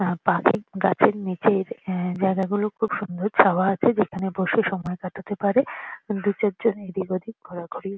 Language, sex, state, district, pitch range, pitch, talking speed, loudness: Bengali, female, West Bengal, Kolkata, 190-210 Hz, 195 Hz, 135 wpm, -23 LUFS